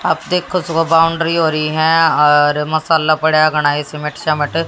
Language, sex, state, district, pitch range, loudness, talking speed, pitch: Hindi, female, Haryana, Jhajjar, 150-165 Hz, -14 LUFS, 140 wpm, 155 Hz